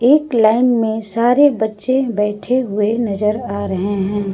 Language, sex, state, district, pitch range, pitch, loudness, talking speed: Hindi, female, Jharkhand, Garhwa, 205-245 Hz, 220 Hz, -16 LUFS, 150 wpm